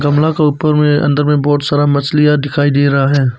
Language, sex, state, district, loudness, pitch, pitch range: Hindi, male, Arunachal Pradesh, Papum Pare, -12 LUFS, 145 Hz, 145-150 Hz